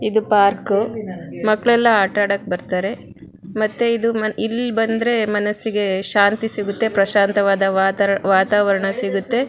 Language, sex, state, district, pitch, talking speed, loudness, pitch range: Kannada, female, Karnataka, Shimoga, 205 Hz, 100 wpm, -18 LUFS, 195-225 Hz